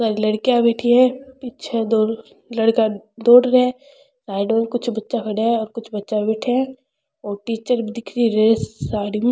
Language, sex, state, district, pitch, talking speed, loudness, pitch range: Rajasthani, female, Rajasthan, Churu, 230 Hz, 185 wpm, -19 LUFS, 220-250 Hz